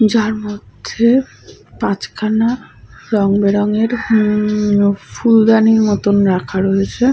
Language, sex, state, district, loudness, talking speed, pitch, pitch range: Bengali, female, West Bengal, Purulia, -14 LUFS, 90 wpm, 210 Hz, 200-225 Hz